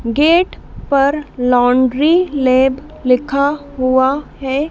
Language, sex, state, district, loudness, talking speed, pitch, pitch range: Hindi, female, Madhya Pradesh, Dhar, -15 LUFS, 90 wpm, 275 Hz, 255-290 Hz